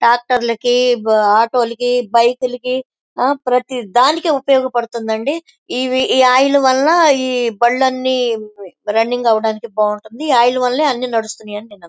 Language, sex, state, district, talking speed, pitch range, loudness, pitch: Telugu, female, Andhra Pradesh, Krishna, 105 wpm, 225-260 Hz, -15 LUFS, 245 Hz